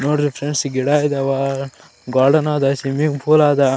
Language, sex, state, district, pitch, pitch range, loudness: Kannada, male, Karnataka, Raichur, 140 Hz, 135-150 Hz, -17 LUFS